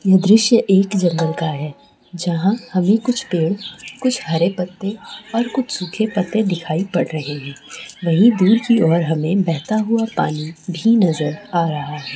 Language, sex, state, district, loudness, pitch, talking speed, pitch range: Hindi, female, Jharkhand, Jamtara, -18 LUFS, 180 Hz, 170 wpm, 165-215 Hz